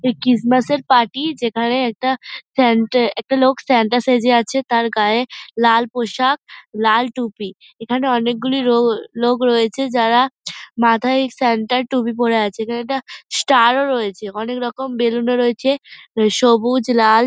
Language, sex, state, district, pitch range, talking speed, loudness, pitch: Bengali, female, West Bengal, Dakshin Dinajpur, 230-255 Hz, 145 wpm, -17 LUFS, 240 Hz